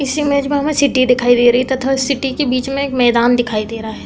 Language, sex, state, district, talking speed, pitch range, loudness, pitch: Hindi, female, Uttar Pradesh, Deoria, 310 wpm, 245-280 Hz, -15 LUFS, 260 Hz